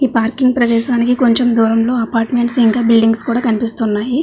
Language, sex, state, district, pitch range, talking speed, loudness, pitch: Telugu, female, Andhra Pradesh, Visakhapatnam, 225-245 Hz, 140 wpm, -14 LUFS, 235 Hz